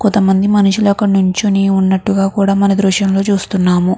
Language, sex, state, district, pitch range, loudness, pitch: Telugu, female, Andhra Pradesh, Chittoor, 190-200 Hz, -13 LUFS, 195 Hz